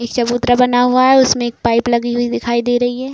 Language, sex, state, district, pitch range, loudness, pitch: Hindi, female, Uttar Pradesh, Budaun, 235-245 Hz, -14 LUFS, 245 Hz